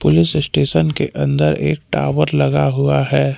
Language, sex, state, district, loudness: Hindi, male, Jharkhand, Palamu, -16 LUFS